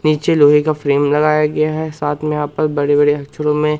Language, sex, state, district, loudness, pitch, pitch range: Hindi, male, Madhya Pradesh, Katni, -15 LUFS, 150 Hz, 145-155 Hz